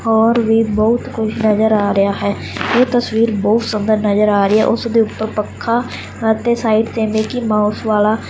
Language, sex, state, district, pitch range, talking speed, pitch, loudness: Punjabi, male, Punjab, Fazilka, 210-230 Hz, 190 wpm, 220 Hz, -15 LUFS